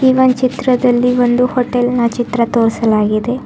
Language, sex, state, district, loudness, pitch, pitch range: Kannada, female, Karnataka, Bidar, -14 LUFS, 245 Hz, 235-250 Hz